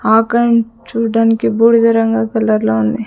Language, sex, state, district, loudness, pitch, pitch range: Telugu, female, Andhra Pradesh, Sri Satya Sai, -13 LUFS, 225 Hz, 220-230 Hz